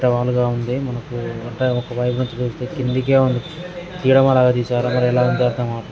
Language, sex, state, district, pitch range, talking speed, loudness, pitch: Telugu, male, Andhra Pradesh, Srikakulam, 120-130 Hz, 140 wpm, -19 LUFS, 125 Hz